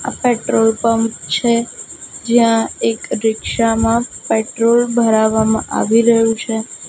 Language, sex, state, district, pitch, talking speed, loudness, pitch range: Gujarati, female, Gujarat, Gandhinagar, 225 Hz, 115 wpm, -15 LUFS, 220-235 Hz